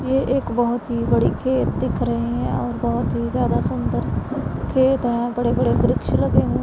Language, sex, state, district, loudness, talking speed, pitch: Hindi, female, Punjab, Pathankot, -21 LUFS, 190 wpm, 240 Hz